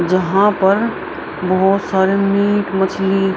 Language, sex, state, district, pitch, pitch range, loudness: Hindi, female, Bihar, Araria, 195 Hz, 190-200 Hz, -16 LUFS